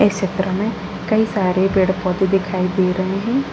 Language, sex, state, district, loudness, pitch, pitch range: Hindi, female, Bihar, Jahanabad, -19 LUFS, 190 Hz, 185-205 Hz